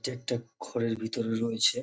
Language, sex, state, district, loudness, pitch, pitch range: Bengali, male, West Bengal, North 24 Parganas, -31 LUFS, 115 Hz, 115-120 Hz